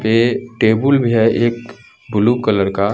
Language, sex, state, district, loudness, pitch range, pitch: Hindi, male, Bihar, Katihar, -15 LUFS, 105-120 Hz, 115 Hz